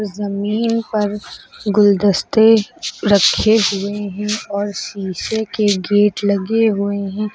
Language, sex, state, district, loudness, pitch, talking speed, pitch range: Hindi, female, Uttar Pradesh, Lucknow, -17 LUFS, 205 Hz, 105 wpm, 200-220 Hz